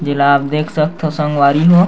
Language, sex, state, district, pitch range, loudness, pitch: Chhattisgarhi, male, Chhattisgarh, Sukma, 140-155 Hz, -14 LUFS, 150 Hz